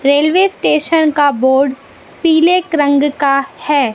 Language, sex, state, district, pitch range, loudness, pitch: Hindi, female, Madhya Pradesh, Katni, 275-320 Hz, -13 LUFS, 290 Hz